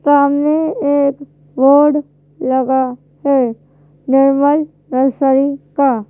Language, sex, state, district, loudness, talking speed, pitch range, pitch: Hindi, female, Madhya Pradesh, Bhopal, -14 LUFS, 80 wpm, 255-285 Hz, 275 Hz